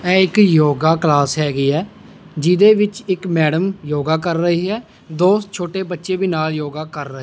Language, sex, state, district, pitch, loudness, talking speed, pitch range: Punjabi, male, Punjab, Pathankot, 170 Hz, -17 LUFS, 190 wpm, 155-190 Hz